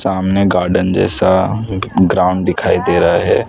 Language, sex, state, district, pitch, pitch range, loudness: Hindi, male, Gujarat, Valsad, 95 Hz, 90-95 Hz, -14 LUFS